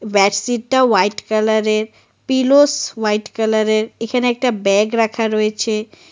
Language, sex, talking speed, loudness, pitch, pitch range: Bengali, female, 110 wpm, -16 LUFS, 220 Hz, 215-245 Hz